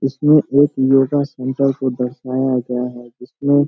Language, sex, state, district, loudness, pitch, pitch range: Hindi, male, Bihar, Samastipur, -17 LUFS, 135 Hz, 125-140 Hz